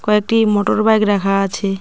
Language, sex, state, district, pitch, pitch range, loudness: Bengali, female, West Bengal, Cooch Behar, 205 Hz, 195-215 Hz, -15 LUFS